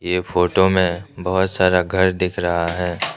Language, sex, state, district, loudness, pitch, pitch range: Hindi, male, Arunachal Pradesh, Lower Dibang Valley, -19 LUFS, 90 Hz, 90-95 Hz